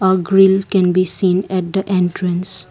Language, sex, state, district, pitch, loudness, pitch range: English, female, Assam, Kamrup Metropolitan, 185 Hz, -15 LUFS, 180-190 Hz